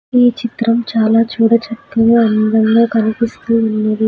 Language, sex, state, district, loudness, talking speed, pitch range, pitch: Telugu, female, Andhra Pradesh, Sri Satya Sai, -13 LUFS, 120 wpm, 220-230 Hz, 230 Hz